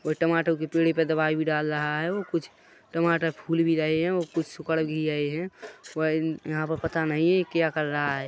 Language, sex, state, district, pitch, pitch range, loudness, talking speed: Hindi, male, Chhattisgarh, Rajnandgaon, 160 Hz, 155-165 Hz, -26 LUFS, 215 wpm